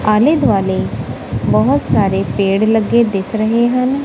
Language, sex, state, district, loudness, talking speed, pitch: Punjabi, female, Punjab, Kapurthala, -14 LUFS, 135 wpm, 210 Hz